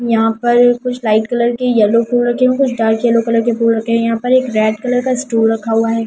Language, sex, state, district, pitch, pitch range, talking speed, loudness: Hindi, female, Delhi, New Delhi, 230 Hz, 225-245 Hz, 275 wpm, -14 LUFS